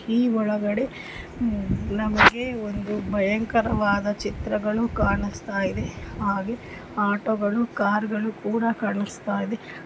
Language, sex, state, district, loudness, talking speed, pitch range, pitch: Kannada, female, Karnataka, Mysore, -24 LUFS, 105 wpm, 205-225 Hz, 210 Hz